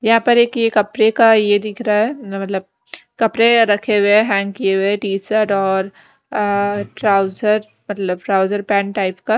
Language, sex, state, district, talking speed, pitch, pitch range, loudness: Hindi, female, Punjab, Kapurthala, 190 wpm, 205 Hz, 195-220 Hz, -16 LUFS